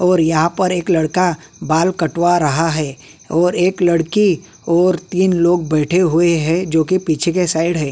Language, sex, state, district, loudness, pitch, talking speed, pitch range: Hindi, male, Uttarakhand, Tehri Garhwal, -16 LUFS, 170 Hz, 180 wpm, 160-180 Hz